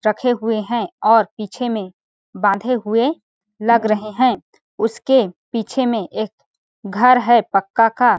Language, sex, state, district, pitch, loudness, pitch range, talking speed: Hindi, female, Chhattisgarh, Balrampur, 225 Hz, -18 LUFS, 210-240 Hz, 145 wpm